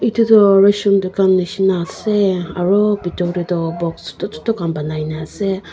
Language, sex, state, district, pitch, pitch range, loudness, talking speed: Nagamese, female, Nagaland, Kohima, 185 Hz, 170-200 Hz, -16 LUFS, 170 wpm